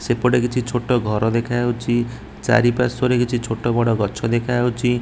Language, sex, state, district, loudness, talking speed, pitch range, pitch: Odia, male, Odisha, Nuapada, -20 LUFS, 145 wpm, 115-125 Hz, 120 Hz